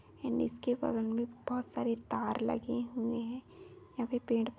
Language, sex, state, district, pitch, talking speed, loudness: Hindi, female, West Bengal, Paschim Medinipur, 235 Hz, 185 wpm, -36 LUFS